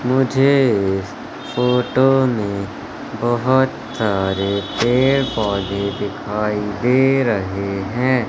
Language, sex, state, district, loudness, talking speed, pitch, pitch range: Hindi, male, Madhya Pradesh, Katni, -18 LUFS, 85 wpm, 120 Hz, 100-130 Hz